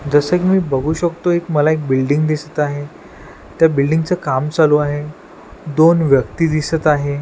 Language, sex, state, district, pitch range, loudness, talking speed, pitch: Marathi, male, Maharashtra, Washim, 145-165 Hz, -16 LUFS, 175 wpm, 150 Hz